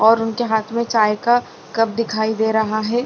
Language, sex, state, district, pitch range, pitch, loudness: Hindi, female, Chhattisgarh, Bilaspur, 220-235 Hz, 225 Hz, -19 LUFS